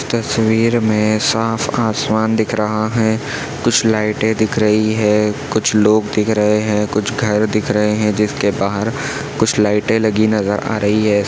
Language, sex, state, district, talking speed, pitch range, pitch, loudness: Hindi, male, Chhattisgarh, Balrampur, 165 wpm, 105-115 Hz, 110 Hz, -16 LUFS